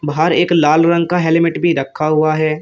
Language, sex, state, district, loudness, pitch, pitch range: Hindi, male, Uttar Pradesh, Shamli, -14 LUFS, 160 Hz, 155-170 Hz